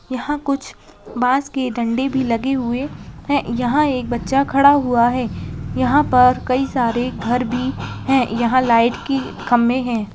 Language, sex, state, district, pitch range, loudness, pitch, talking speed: Hindi, female, Bihar, Kishanganj, 240-270 Hz, -18 LUFS, 255 Hz, 160 wpm